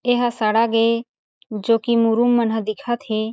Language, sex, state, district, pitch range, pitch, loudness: Chhattisgarhi, female, Chhattisgarh, Sarguja, 220-240 Hz, 230 Hz, -19 LUFS